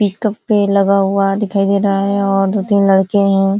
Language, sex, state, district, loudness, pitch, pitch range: Hindi, female, Uttar Pradesh, Ghazipur, -14 LUFS, 200 Hz, 195-200 Hz